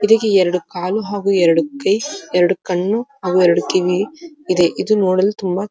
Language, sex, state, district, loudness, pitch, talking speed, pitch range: Kannada, female, Karnataka, Dharwad, -17 LUFS, 190 Hz, 170 wpm, 180-210 Hz